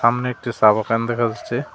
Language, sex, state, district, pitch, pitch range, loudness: Bengali, male, West Bengal, Cooch Behar, 120 Hz, 115-120 Hz, -19 LUFS